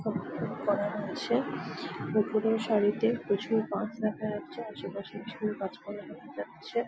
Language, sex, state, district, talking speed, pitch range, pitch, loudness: Bengali, female, West Bengal, Jalpaiguri, 130 wpm, 200-225 Hz, 215 Hz, -32 LUFS